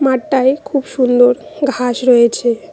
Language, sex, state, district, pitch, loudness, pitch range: Bengali, female, West Bengal, Cooch Behar, 255 Hz, -14 LUFS, 245-270 Hz